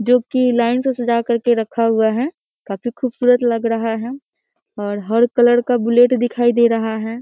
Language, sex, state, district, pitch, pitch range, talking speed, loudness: Hindi, female, Bihar, Muzaffarpur, 240 Hz, 230-245 Hz, 190 wpm, -17 LUFS